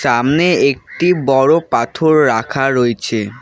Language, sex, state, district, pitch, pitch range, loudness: Bengali, male, West Bengal, Alipurduar, 135 Hz, 120-155 Hz, -14 LUFS